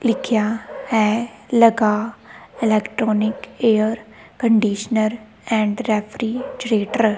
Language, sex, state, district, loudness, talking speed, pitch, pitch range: Punjabi, female, Punjab, Kapurthala, -19 LUFS, 75 wpm, 220 Hz, 215-230 Hz